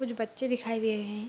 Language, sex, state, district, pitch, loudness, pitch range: Hindi, female, Bihar, Vaishali, 225 Hz, -31 LUFS, 220-250 Hz